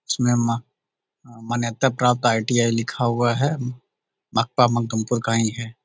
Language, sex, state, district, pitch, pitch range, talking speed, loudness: Magahi, male, Bihar, Jahanabad, 120 Hz, 115-125 Hz, 90 wpm, -22 LUFS